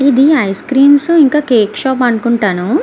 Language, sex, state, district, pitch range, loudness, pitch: Telugu, female, Andhra Pradesh, Visakhapatnam, 230-290 Hz, -11 LUFS, 265 Hz